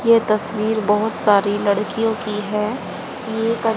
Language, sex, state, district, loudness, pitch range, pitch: Hindi, female, Haryana, Charkhi Dadri, -19 LUFS, 210-225 Hz, 215 Hz